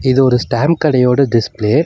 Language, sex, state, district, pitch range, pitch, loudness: Tamil, male, Tamil Nadu, Nilgiris, 120-145 Hz, 130 Hz, -13 LUFS